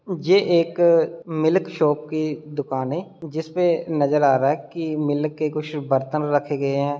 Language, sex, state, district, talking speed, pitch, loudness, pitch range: Hindi, male, Bihar, Muzaffarpur, 170 wpm, 155 Hz, -21 LUFS, 145-165 Hz